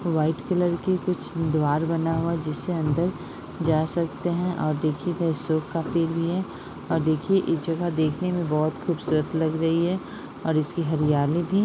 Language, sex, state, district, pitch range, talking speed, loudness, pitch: Hindi, female, Uttar Pradesh, Ghazipur, 155-175 Hz, 185 wpm, -25 LUFS, 165 Hz